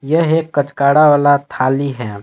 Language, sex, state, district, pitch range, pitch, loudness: Hindi, male, Jharkhand, Palamu, 135-150 Hz, 145 Hz, -14 LUFS